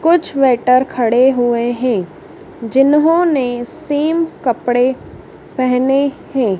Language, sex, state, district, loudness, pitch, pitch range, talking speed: Hindi, female, Madhya Pradesh, Dhar, -15 LUFS, 265 Hz, 245-315 Hz, 90 wpm